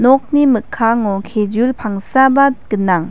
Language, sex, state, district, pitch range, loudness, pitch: Garo, female, Meghalaya, West Garo Hills, 205-265 Hz, -14 LUFS, 235 Hz